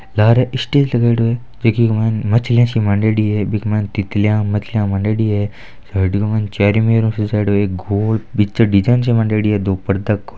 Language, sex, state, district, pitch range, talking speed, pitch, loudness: Marwari, male, Rajasthan, Nagaur, 105-115 Hz, 65 wpm, 105 Hz, -16 LUFS